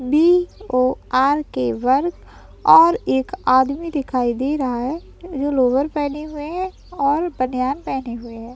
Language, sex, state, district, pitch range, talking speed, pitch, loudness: Hindi, male, Bihar, Madhepura, 255-305 Hz, 140 wpm, 275 Hz, -19 LUFS